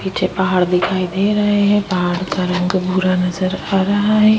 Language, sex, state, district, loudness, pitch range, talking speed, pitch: Hindi, female, Goa, North and South Goa, -17 LUFS, 180-205 Hz, 190 wpm, 185 Hz